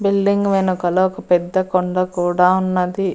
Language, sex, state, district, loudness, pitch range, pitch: Telugu, female, Andhra Pradesh, Annamaya, -17 LUFS, 180-195 Hz, 185 Hz